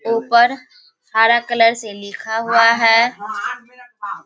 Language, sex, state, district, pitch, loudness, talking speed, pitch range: Hindi, female, Bihar, Sitamarhi, 230 Hz, -15 LUFS, 100 wpm, 225-240 Hz